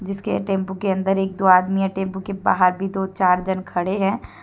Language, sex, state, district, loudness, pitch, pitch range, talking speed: Hindi, female, Jharkhand, Deoghar, -20 LUFS, 190 Hz, 185-195 Hz, 230 wpm